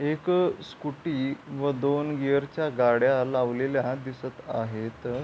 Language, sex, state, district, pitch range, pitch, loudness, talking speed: Marathi, male, Maharashtra, Pune, 125-145 Hz, 135 Hz, -27 LUFS, 115 wpm